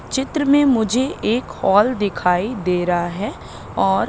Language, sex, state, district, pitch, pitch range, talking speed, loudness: Hindi, female, Madhya Pradesh, Katni, 205 Hz, 175-255 Hz, 145 wpm, -19 LUFS